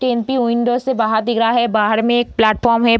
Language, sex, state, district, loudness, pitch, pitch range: Hindi, female, Bihar, Begusarai, -16 LUFS, 235 Hz, 225-240 Hz